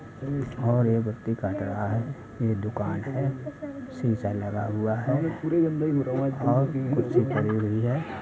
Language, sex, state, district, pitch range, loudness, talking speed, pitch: Hindi, male, Uttar Pradesh, Budaun, 110-140 Hz, -27 LUFS, 130 wpm, 120 Hz